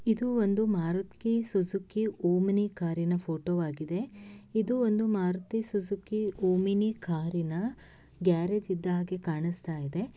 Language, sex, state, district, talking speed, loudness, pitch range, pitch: Kannada, female, Karnataka, Shimoga, 110 wpm, -30 LUFS, 175-215 Hz, 190 Hz